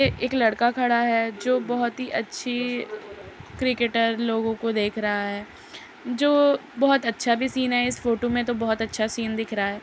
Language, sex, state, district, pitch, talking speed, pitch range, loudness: Hindi, female, Uttar Pradesh, Muzaffarnagar, 235 Hz, 195 wpm, 220-245 Hz, -24 LUFS